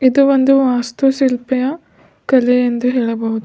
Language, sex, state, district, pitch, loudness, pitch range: Kannada, female, Karnataka, Bidar, 255 Hz, -15 LUFS, 245-270 Hz